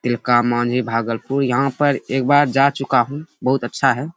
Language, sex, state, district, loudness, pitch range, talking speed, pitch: Hindi, male, Bihar, Bhagalpur, -18 LUFS, 120-140 Hz, 175 wpm, 130 Hz